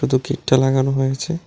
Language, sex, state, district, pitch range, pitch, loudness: Bengali, male, Tripura, West Tripura, 135-140 Hz, 135 Hz, -18 LUFS